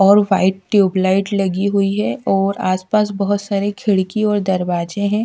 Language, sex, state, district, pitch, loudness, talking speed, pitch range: Hindi, female, Odisha, Sambalpur, 200 Hz, -17 LUFS, 170 wpm, 190-205 Hz